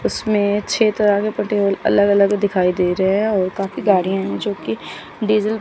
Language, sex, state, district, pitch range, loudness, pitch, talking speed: Hindi, female, Chandigarh, Chandigarh, 190-210 Hz, -18 LUFS, 200 Hz, 215 wpm